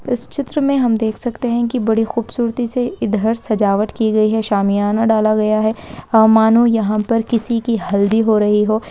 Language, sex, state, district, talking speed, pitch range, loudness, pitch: Hindi, female, Uttarakhand, Tehri Garhwal, 195 wpm, 215-235 Hz, -16 LUFS, 220 Hz